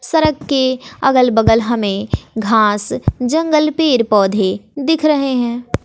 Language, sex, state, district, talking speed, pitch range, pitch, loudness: Hindi, female, Bihar, West Champaran, 125 wpm, 220-295 Hz, 250 Hz, -15 LUFS